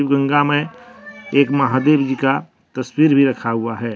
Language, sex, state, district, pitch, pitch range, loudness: Hindi, male, Jharkhand, Deoghar, 140 Hz, 130-145 Hz, -17 LUFS